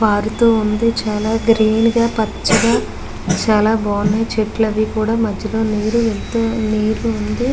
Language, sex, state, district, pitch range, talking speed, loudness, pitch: Telugu, female, Andhra Pradesh, Guntur, 215-225 Hz, 110 wpm, -16 LUFS, 220 Hz